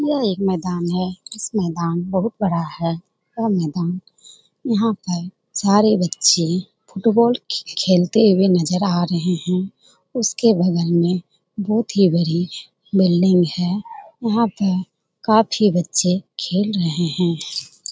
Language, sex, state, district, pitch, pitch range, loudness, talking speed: Hindi, female, Bihar, Jamui, 185 Hz, 175-210 Hz, -19 LUFS, 125 wpm